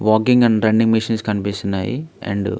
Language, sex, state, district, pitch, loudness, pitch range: Telugu, male, Andhra Pradesh, Visakhapatnam, 110 Hz, -18 LUFS, 100-115 Hz